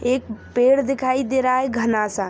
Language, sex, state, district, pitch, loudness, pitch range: Hindi, female, Jharkhand, Sahebganj, 255 Hz, -20 LUFS, 230-260 Hz